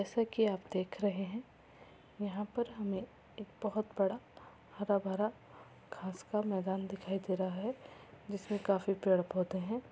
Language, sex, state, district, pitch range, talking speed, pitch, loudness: Hindi, female, Uttar Pradesh, Muzaffarnagar, 190-215 Hz, 150 wpm, 200 Hz, -37 LUFS